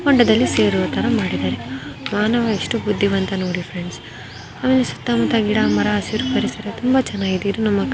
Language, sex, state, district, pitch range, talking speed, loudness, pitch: Kannada, female, Karnataka, Bijapur, 175-230 Hz, 160 wpm, -19 LUFS, 205 Hz